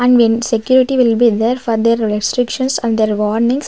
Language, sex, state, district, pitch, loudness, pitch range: English, female, Maharashtra, Gondia, 230 Hz, -14 LUFS, 225-250 Hz